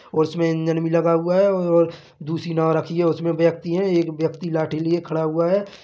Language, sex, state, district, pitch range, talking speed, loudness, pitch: Hindi, male, Chhattisgarh, Bilaspur, 160-170 Hz, 205 wpm, -21 LUFS, 165 Hz